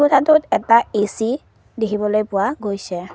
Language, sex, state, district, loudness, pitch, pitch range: Assamese, female, Assam, Kamrup Metropolitan, -18 LUFS, 220 Hz, 205-255 Hz